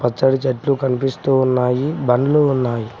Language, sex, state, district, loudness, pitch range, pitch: Telugu, male, Telangana, Mahabubabad, -18 LUFS, 125-135 Hz, 130 Hz